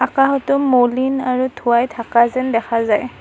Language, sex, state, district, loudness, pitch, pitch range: Assamese, female, Assam, Kamrup Metropolitan, -16 LUFS, 250 Hz, 235-265 Hz